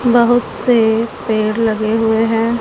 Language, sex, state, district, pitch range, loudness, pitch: Hindi, female, Punjab, Pathankot, 220-235 Hz, -15 LUFS, 225 Hz